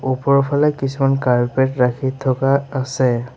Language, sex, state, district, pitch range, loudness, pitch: Assamese, male, Assam, Sonitpur, 130-140 Hz, -18 LUFS, 130 Hz